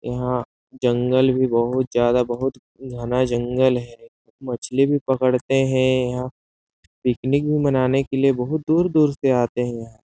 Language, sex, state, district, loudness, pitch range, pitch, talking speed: Hindi, male, Chhattisgarh, Sarguja, -20 LUFS, 125-135 Hz, 130 Hz, 160 wpm